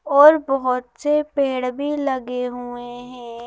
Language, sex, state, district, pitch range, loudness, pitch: Hindi, female, Madhya Pradesh, Bhopal, 245-285 Hz, -20 LUFS, 255 Hz